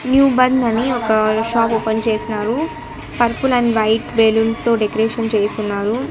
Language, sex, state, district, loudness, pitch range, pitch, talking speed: Telugu, female, Andhra Pradesh, Annamaya, -17 LUFS, 220-240 Hz, 225 Hz, 140 wpm